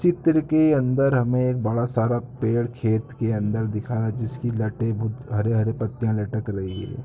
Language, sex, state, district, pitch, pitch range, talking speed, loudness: Hindi, male, Uttar Pradesh, Ghazipur, 115 Hz, 110-125 Hz, 170 wpm, -23 LUFS